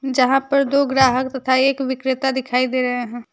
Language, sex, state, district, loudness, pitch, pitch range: Hindi, female, Jharkhand, Deoghar, -18 LUFS, 260 Hz, 255-270 Hz